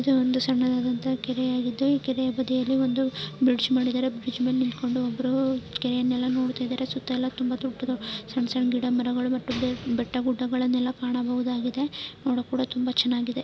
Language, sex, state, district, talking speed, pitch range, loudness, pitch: Kannada, female, Karnataka, Shimoga, 145 wpm, 250-260 Hz, -26 LUFS, 255 Hz